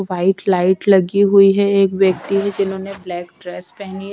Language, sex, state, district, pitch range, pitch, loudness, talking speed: Hindi, female, Haryana, Rohtak, 185-200 Hz, 195 Hz, -15 LUFS, 190 wpm